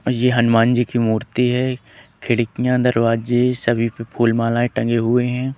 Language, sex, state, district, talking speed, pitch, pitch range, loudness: Hindi, male, Madhya Pradesh, Katni, 160 wpm, 120 Hz, 115-125 Hz, -18 LUFS